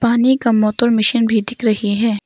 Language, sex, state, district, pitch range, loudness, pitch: Hindi, female, Arunachal Pradesh, Papum Pare, 215-240 Hz, -15 LUFS, 230 Hz